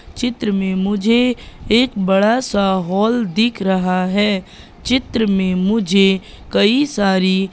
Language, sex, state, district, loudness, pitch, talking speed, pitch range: Hindi, female, Madhya Pradesh, Katni, -16 LUFS, 200 Hz, 120 wpm, 190-230 Hz